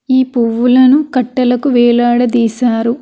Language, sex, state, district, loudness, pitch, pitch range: Telugu, female, Telangana, Hyderabad, -11 LUFS, 245 Hz, 240-255 Hz